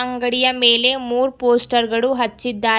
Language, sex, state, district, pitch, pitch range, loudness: Kannada, female, Karnataka, Bidar, 245 Hz, 240-250 Hz, -17 LUFS